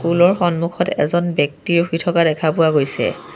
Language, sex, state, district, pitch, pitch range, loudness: Assamese, male, Assam, Sonitpur, 170 Hz, 155-175 Hz, -17 LUFS